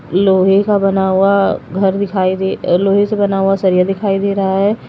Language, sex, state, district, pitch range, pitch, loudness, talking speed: Hindi, female, Uttar Pradesh, Lalitpur, 190-200 Hz, 195 Hz, -14 LUFS, 195 wpm